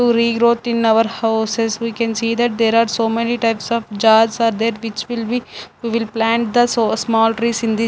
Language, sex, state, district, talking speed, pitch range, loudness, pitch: English, female, Punjab, Fazilka, 230 wpm, 225-235 Hz, -17 LUFS, 230 Hz